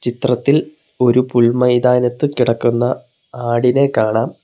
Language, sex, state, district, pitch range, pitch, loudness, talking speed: Malayalam, male, Kerala, Kollam, 120-130 Hz, 125 Hz, -15 LUFS, 80 wpm